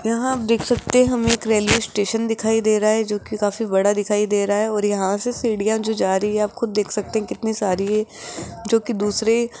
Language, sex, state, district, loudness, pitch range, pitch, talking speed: Hindi, female, Rajasthan, Jaipur, -20 LUFS, 205-225 Hz, 215 Hz, 245 wpm